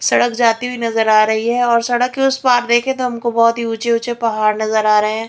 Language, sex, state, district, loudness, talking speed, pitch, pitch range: Hindi, female, Bihar, Katihar, -15 LUFS, 260 wpm, 235 Hz, 225-245 Hz